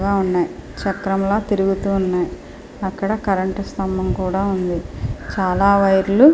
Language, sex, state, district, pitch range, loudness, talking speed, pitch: Telugu, female, Andhra Pradesh, Srikakulam, 185-200 Hz, -19 LUFS, 135 wpm, 195 Hz